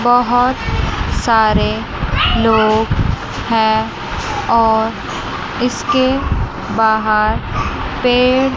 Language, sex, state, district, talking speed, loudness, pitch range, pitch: Hindi, female, Chandigarh, Chandigarh, 55 wpm, -15 LUFS, 220-245 Hz, 230 Hz